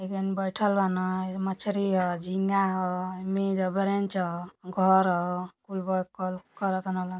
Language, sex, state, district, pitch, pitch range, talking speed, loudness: Bhojpuri, female, Uttar Pradesh, Gorakhpur, 190 Hz, 185-195 Hz, 115 wpm, -28 LUFS